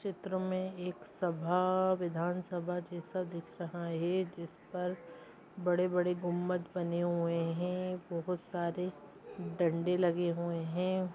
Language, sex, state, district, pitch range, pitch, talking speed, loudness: Hindi, male, Bihar, Purnia, 170-180 Hz, 180 Hz, 125 wpm, -35 LUFS